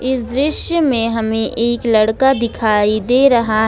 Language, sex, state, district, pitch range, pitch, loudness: Hindi, female, Jharkhand, Ranchi, 220-260 Hz, 235 Hz, -15 LUFS